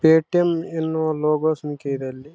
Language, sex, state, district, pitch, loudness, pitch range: Kannada, male, Karnataka, Raichur, 155 Hz, -22 LUFS, 145-160 Hz